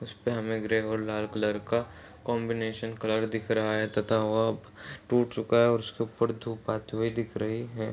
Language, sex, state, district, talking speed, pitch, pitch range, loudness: Hindi, male, Uttar Pradesh, Ghazipur, 205 wpm, 110 Hz, 110-115 Hz, -29 LUFS